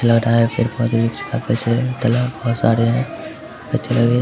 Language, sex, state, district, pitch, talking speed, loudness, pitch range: Hindi, male, Bihar, Samastipur, 115 Hz, 185 wpm, -18 LUFS, 115-120 Hz